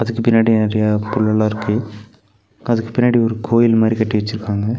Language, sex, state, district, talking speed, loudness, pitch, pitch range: Tamil, male, Tamil Nadu, Nilgiris, 150 wpm, -16 LUFS, 110 Hz, 105-115 Hz